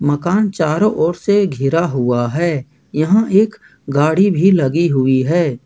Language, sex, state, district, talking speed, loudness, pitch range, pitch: Hindi, male, Jharkhand, Ranchi, 150 wpm, -15 LUFS, 140-195 Hz, 165 Hz